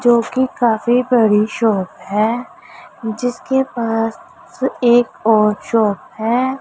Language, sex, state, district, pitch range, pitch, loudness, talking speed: Hindi, female, Punjab, Pathankot, 220-260 Hz, 240 Hz, -17 LUFS, 110 wpm